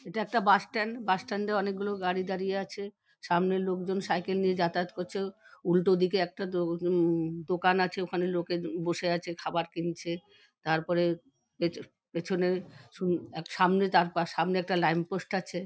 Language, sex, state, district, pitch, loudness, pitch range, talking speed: Bengali, female, West Bengal, Dakshin Dinajpur, 180 Hz, -30 LUFS, 170-190 Hz, 170 wpm